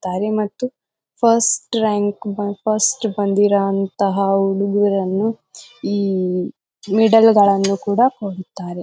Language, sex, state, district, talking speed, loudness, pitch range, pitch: Kannada, female, Karnataka, Bijapur, 75 wpm, -17 LUFS, 195-215 Hz, 205 Hz